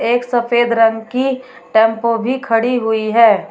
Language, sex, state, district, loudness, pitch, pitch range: Hindi, female, Uttar Pradesh, Shamli, -15 LUFS, 235 Hz, 225-250 Hz